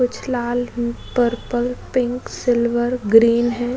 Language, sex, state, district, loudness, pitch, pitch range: Hindi, female, Uttar Pradesh, Budaun, -19 LUFS, 240 Hz, 240-245 Hz